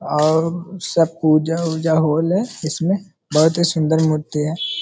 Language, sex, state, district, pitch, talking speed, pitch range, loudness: Hindi, male, Bihar, Araria, 160 Hz, 150 wpm, 155-170 Hz, -18 LUFS